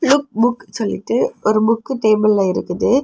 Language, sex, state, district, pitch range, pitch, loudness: Tamil, female, Tamil Nadu, Kanyakumari, 215-260 Hz, 225 Hz, -17 LUFS